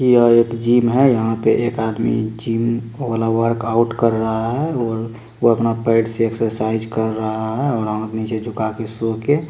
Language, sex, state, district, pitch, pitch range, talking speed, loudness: Maithili, male, Bihar, Supaul, 115 Hz, 110-115 Hz, 185 wpm, -18 LUFS